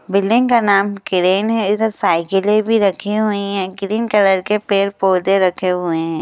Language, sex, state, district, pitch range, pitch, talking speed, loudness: Hindi, female, Madhya Pradesh, Bhopal, 190-210 Hz, 200 Hz, 185 wpm, -16 LUFS